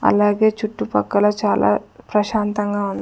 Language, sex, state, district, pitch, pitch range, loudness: Telugu, female, Andhra Pradesh, Sri Satya Sai, 205 Hz, 205-210 Hz, -19 LUFS